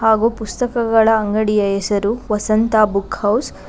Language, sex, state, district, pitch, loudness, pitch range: Kannada, female, Karnataka, Bangalore, 215 Hz, -17 LUFS, 210-225 Hz